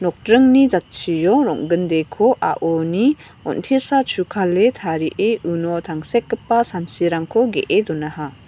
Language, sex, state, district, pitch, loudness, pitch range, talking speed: Garo, female, Meghalaya, West Garo Hills, 175 Hz, -18 LUFS, 165-235 Hz, 85 wpm